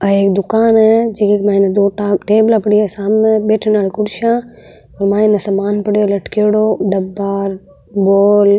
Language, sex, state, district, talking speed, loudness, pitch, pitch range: Marwari, female, Rajasthan, Nagaur, 170 wpm, -13 LUFS, 205 Hz, 200-215 Hz